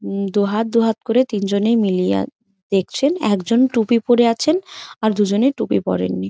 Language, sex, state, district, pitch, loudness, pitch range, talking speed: Bengali, female, West Bengal, Jhargram, 220 Hz, -18 LUFS, 195-235 Hz, 190 wpm